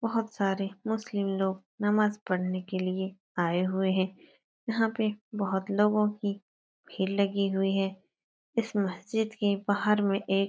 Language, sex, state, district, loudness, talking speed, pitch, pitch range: Hindi, female, Uttar Pradesh, Etah, -29 LUFS, 155 wpm, 200 Hz, 190-210 Hz